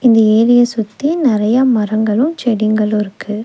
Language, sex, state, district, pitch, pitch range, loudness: Tamil, female, Tamil Nadu, Nilgiris, 225 Hz, 215-245 Hz, -13 LUFS